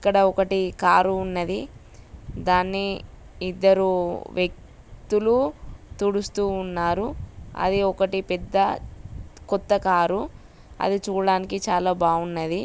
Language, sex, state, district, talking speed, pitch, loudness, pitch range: Telugu, female, Telangana, Nalgonda, 90 wpm, 190 Hz, -23 LUFS, 180-195 Hz